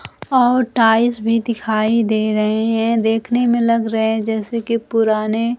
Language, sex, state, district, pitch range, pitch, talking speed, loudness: Hindi, female, Bihar, Kaimur, 220-235 Hz, 225 Hz, 160 wpm, -17 LUFS